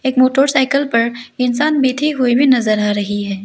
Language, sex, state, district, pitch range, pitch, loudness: Hindi, female, Arunachal Pradesh, Lower Dibang Valley, 230-270 Hz, 255 Hz, -15 LUFS